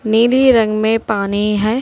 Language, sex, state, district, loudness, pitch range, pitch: Hindi, female, Telangana, Hyderabad, -14 LUFS, 210-230 Hz, 220 Hz